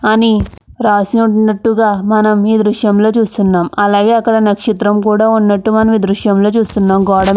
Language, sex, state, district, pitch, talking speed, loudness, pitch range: Telugu, female, Andhra Pradesh, Anantapur, 215 Hz, 130 wpm, -11 LUFS, 205-220 Hz